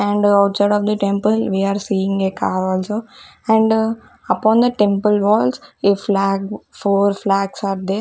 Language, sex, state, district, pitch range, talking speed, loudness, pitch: English, female, Chandigarh, Chandigarh, 195-210 Hz, 150 wpm, -17 LUFS, 200 Hz